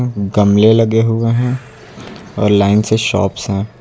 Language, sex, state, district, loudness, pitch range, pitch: Hindi, male, Uttar Pradesh, Lucknow, -13 LUFS, 100-115 Hz, 110 Hz